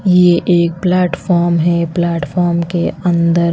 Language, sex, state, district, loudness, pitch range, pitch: Hindi, female, Chhattisgarh, Raipur, -14 LUFS, 170-180 Hz, 175 Hz